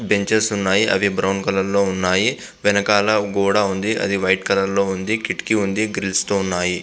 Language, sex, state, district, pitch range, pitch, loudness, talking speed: Telugu, male, Andhra Pradesh, Visakhapatnam, 95-105 Hz, 100 Hz, -19 LUFS, 150 wpm